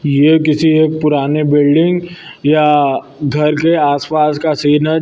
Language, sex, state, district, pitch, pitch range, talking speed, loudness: Hindi, male, Uttar Pradesh, Lucknow, 150 Hz, 145-155 Hz, 165 wpm, -13 LUFS